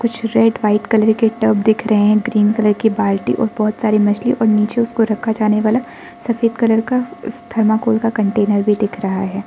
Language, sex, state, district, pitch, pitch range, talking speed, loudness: Hindi, female, Arunachal Pradesh, Lower Dibang Valley, 220 Hz, 210-225 Hz, 205 wpm, -16 LUFS